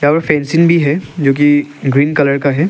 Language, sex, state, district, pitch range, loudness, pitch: Hindi, male, Arunachal Pradesh, Lower Dibang Valley, 140-160 Hz, -12 LUFS, 145 Hz